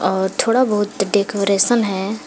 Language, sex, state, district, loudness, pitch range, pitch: Hindi, female, Jharkhand, Garhwa, -17 LUFS, 195-225 Hz, 205 Hz